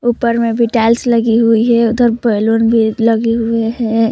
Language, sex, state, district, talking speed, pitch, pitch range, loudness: Hindi, female, Jharkhand, Palamu, 190 wpm, 230 Hz, 225-235 Hz, -13 LUFS